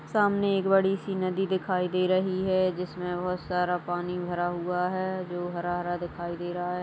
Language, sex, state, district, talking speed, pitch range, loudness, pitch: Hindi, female, Chhattisgarh, Kabirdham, 200 wpm, 175-185 Hz, -28 LUFS, 180 Hz